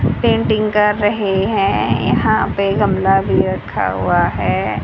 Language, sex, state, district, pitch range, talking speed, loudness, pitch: Hindi, female, Haryana, Charkhi Dadri, 195-210 Hz, 135 wpm, -16 LUFS, 205 Hz